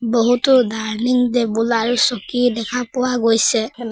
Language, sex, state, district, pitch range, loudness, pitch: Assamese, female, Assam, Sonitpur, 230-245 Hz, -17 LUFS, 240 Hz